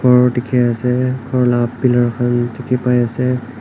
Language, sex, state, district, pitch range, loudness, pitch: Nagamese, male, Nagaland, Kohima, 120-125 Hz, -16 LUFS, 125 Hz